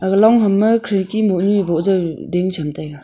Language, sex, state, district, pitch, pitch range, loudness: Wancho, female, Arunachal Pradesh, Longding, 190 Hz, 170-205 Hz, -16 LUFS